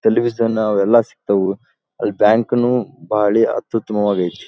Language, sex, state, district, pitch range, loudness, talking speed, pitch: Kannada, male, Karnataka, Dharwad, 105-115 Hz, -17 LUFS, 95 wpm, 110 Hz